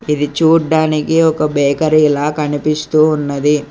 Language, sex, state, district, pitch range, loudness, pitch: Telugu, male, Telangana, Hyderabad, 145-155 Hz, -13 LUFS, 150 Hz